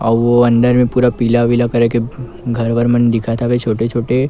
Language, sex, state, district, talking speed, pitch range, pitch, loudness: Chhattisgarhi, male, Chhattisgarh, Kabirdham, 210 wpm, 115-120 Hz, 120 Hz, -14 LUFS